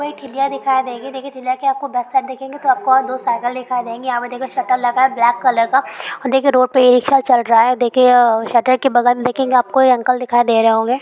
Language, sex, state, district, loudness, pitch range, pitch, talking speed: Hindi, female, Bihar, Kishanganj, -15 LUFS, 245-265 Hz, 255 Hz, 250 wpm